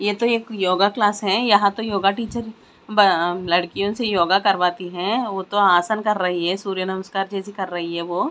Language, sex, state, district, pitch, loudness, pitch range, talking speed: Hindi, female, Maharashtra, Mumbai Suburban, 195 Hz, -20 LUFS, 180-210 Hz, 210 wpm